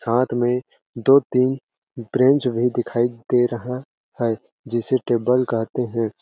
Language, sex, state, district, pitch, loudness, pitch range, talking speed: Hindi, male, Chhattisgarh, Balrampur, 125 Hz, -21 LUFS, 120-125 Hz, 135 wpm